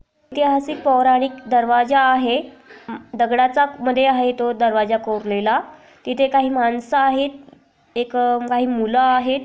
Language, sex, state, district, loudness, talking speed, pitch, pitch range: Marathi, female, Maharashtra, Aurangabad, -18 LUFS, 125 wpm, 255 Hz, 240-270 Hz